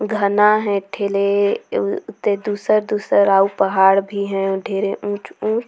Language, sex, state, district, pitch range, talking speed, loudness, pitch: Surgujia, female, Chhattisgarh, Sarguja, 195-215 Hz, 150 wpm, -18 LUFS, 200 Hz